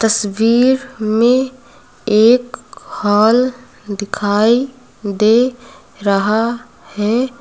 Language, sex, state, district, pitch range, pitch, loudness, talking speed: Hindi, female, Uttar Pradesh, Lucknow, 210-250 Hz, 230 Hz, -15 LUFS, 65 wpm